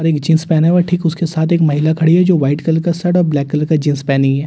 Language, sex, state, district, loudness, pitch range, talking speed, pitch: Hindi, male, Delhi, New Delhi, -14 LUFS, 150-170 Hz, 350 wpm, 160 Hz